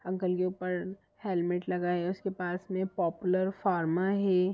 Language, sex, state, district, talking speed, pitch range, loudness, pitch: Hindi, female, Bihar, Sitamarhi, 145 wpm, 180-190 Hz, -31 LUFS, 185 Hz